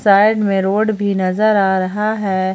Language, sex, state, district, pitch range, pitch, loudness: Hindi, female, Jharkhand, Palamu, 190-215 Hz, 200 Hz, -15 LUFS